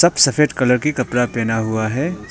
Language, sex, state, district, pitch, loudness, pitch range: Hindi, male, Arunachal Pradesh, Longding, 125 Hz, -17 LUFS, 115-150 Hz